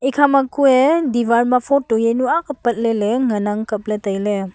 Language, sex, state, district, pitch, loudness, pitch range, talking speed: Wancho, female, Arunachal Pradesh, Longding, 240 Hz, -17 LUFS, 215-275 Hz, 195 wpm